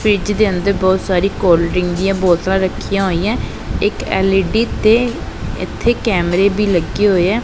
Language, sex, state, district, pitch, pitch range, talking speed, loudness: Punjabi, male, Punjab, Pathankot, 195 Hz, 180-210 Hz, 160 wpm, -15 LUFS